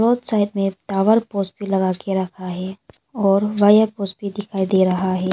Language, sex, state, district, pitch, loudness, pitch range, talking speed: Hindi, female, Arunachal Pradesh, Longding, 195 Hz, -19 LUFS, 190-205 Hz, 190 wpm